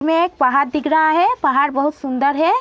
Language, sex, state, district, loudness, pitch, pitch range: Hindi, female, Uttar Pradesh, Etah, -16 LUFS, 300 Hz, 275-320 Hz